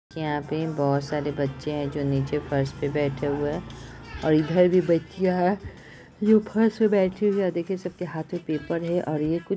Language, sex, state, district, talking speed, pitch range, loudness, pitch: Hindi, female, Uttar Pradesh, Budaun, 220 wpm, 145-180 Hz, -25 LUFS, 160 Hz